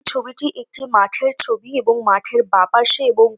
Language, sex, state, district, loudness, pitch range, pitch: Bengali, female, West Bengal, North 24 Parganas, -16 LUFS, 225-280 Hz, 250 Hz